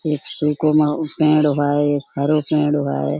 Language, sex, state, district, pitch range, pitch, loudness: Hindi, female, Uttar Pradesh, Budaun, 145-155 Hz, 150 Hz, -18 LUFS